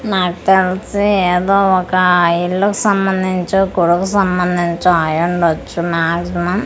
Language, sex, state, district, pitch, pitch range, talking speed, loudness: Telugu, female, Andhra Pradesh, Manyam, 180 Hz, 175-195 Hz, 115 wpm, -14 LUFS